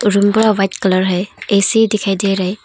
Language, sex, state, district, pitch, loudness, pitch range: Hindi, female, Arunachal Pradesh, Longding, 200 Hz, -14 LUFS, 195-210 Hz